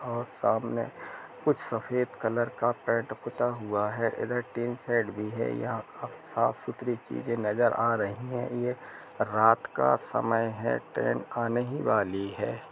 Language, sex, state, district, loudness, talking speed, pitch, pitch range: Hindi, male, Jharkhand, Jamtara, -29 LUFS, 155 wpm, 115 Hz, 105-120 Hz